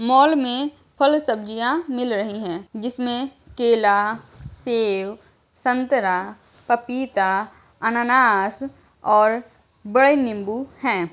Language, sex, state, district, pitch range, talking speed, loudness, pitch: Hindi, female, Uttar Pradesh, Jyotiba Phule Nagar, 210-260 Hz, 90 wpm, -20 LUFS, 235 Hz